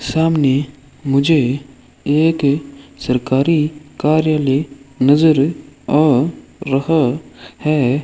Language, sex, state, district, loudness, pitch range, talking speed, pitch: Hindi, male, Rajasthan, Bikaner, -16 LUFS, 135-155 Hz, 65 wpm, 145 Hz